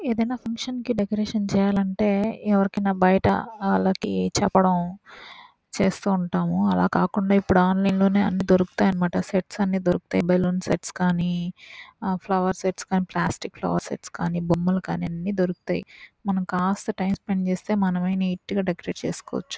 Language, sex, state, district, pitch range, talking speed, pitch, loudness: Telugu, female, Andhra Pradesh, Chittoor, 180-200 Hz, 130 wpm, 190 Hz, -24 LUFS